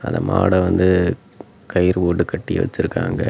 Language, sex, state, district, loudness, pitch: Tamil, male, Tamil Nadu, Namakkal, -18 LUFS, 90 Hz